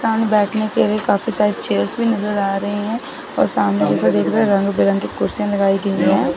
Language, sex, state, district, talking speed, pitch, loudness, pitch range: Hindi, female, Chandigarh, Chandigarh, 200 wpm, 205 Hz, -18 LUFS, 195-215 Hz